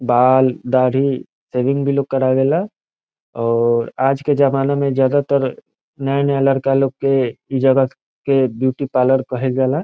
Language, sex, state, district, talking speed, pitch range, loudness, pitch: Bhojpuri, male, Bihar, Saran, 135 wpm, 130-140 Hz, -17 LUFS, 135 Hz